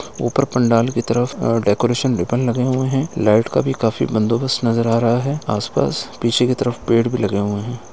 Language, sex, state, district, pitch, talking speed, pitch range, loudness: Hindi, male, Uttar Pradesh, Etah, 120 Hz, 210 wpm, 115-125 Hz, -18 LUFS